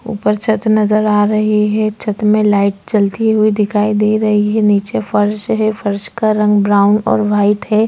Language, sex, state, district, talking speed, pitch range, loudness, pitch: Hindi, female, Maharashtra, Chandrapur, 190 wpm, 205-215 Hz, -14 LUFS, 210 Hz